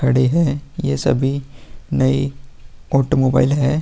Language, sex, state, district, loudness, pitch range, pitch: Hindi, male, Bihar, Vaishali, -18 LUFS, 135-140 Hz, 135 Hz